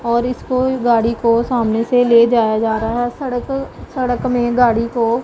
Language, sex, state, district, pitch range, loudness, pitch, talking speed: Hindi, female, Punjab, Pathankot, 230-250 Hz, -16 LUFS, 240 Hz, 195 wpm